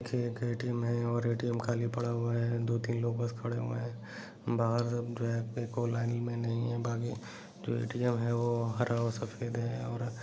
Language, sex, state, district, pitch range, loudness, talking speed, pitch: Hindi, male, Bihar, Jahanabad, 115-120 Hz, -34 LUFS, 190 wpm, 120 Hz